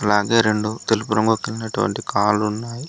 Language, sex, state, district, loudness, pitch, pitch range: Telugu, male, Telangana, Komaram Bheem, -20 LUFS, 110 Hz, 105-115 Hz